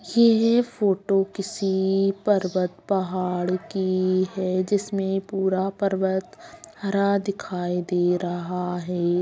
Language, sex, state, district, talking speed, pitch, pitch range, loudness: Hindi, female, Bihar, Purnia, 100 wpm, 190 Hz, 180-200 Hz, -24 LUFS